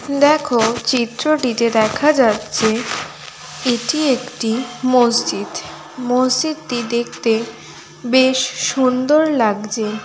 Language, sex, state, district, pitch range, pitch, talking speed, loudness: Bengali, female, West Bengal, Purulia, 225-260 Hz, 245 Hz, 85 wpm, -17 LUFS